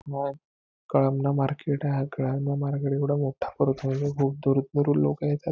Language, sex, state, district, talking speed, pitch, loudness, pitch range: Marathi, male, Maharashtra, Nagpur, 165 wpm, 140 Hz, -26 LUFS, 135-145 Hz